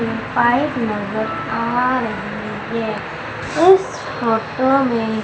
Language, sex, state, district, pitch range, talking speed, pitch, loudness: Hindi, female, Madhya Pradesh, Umaria, 220-250 Hz, 90 wpm, 230 Hz, -19 LUFS